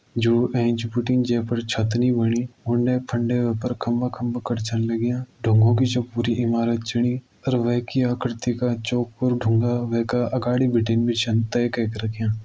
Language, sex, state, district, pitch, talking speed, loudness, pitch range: Garhwali, male, Uttarakhand, Uttarkashi, 120 Hz, 190 wpm, -23 LUFS, 115-125 Hz